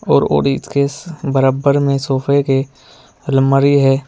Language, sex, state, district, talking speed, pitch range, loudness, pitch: Hindi, male, Uttar Pradesh, Saharanpur, 105 wpm, 135-140 Hz, -15 LUFS, 140 Hz